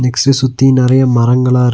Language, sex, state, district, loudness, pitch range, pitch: Tamil, male, Tamil Nadu, Nilgiris, -11 LUFS, 125-130 Hz, 125 Hz